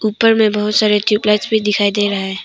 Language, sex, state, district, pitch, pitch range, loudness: Hindi, female, Arunachal Pradesh, Papum Pare, 210 Hz, 205-215 Hz, -14 LUFS